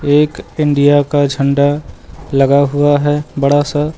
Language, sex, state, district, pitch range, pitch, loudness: Hindi, male, Uttar Pradesh, Lucknow, 140-145 Hz, 145 Hz, -13 LUFS